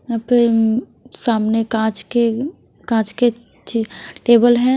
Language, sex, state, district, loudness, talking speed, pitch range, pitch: Hindi, female, Bihar, West Champaran, -17 LUFS, 140 wpm, 225-240 Hz, 235 Hz